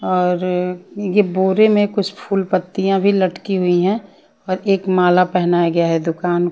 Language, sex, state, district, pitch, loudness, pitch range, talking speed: Hindi, female, Haryana, Rohtak, 185 Hz, -17 LUFS, 180-195 Hz, 165 wpm